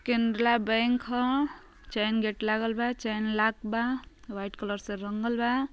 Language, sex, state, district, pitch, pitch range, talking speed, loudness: Bhojpuri, female, Uttar Pradesh, Ghazipur, 225 Hz, 215-240 Hz, 155 wpm, -29 LUFS